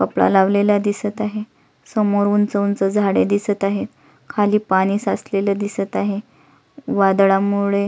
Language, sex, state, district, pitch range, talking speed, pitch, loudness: Marathi, female, Maharashtra, Solapur, 195-205 Hz, 130 wpm, 200 Hz, -18 LUFS